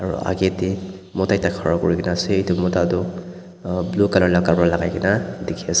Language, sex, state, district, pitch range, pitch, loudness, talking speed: Nagamese, male, Nagaland, Dimapur, 90-95 Hz, 95 Hz, -20 LUFS, 185 wpm